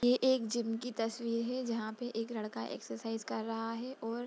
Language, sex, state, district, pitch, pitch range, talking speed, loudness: Hindi, female, Bihar, Darbhanga, 230 Hz, 225-245 Hz, 210 wpm, -36 LUFS